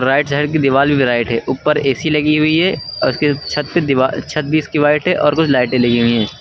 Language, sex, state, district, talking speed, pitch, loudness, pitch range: Hindi, male, Uttar Pradesh, Lucknow, 260 wpm, 145 Hz, -15 LUFS, 130-150 Hz